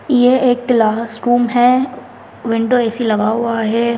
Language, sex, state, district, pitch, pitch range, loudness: Hindi, female, Delhi, New Delhi, 235 Hz, 230-250 Hz, -15 LUFS